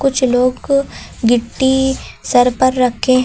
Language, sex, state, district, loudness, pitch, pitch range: Hindi, female, Uttar Pradesh, Lucknow, -15 LUFS, 255 Hz, 250-265 Hz